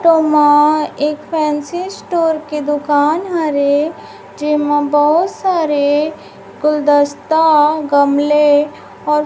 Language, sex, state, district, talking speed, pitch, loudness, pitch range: Hindi, female, Chhattisgarh, Raipur, 105 wpm, 300 Hz, -14 LUFS, 295-315 Hz